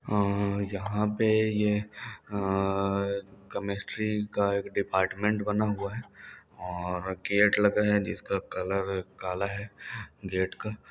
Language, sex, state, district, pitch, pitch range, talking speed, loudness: Hindi, male, Bihar, Muzaffarpur, 100 Hz, 95-105 Hz, 120 wpm, -29 LUFS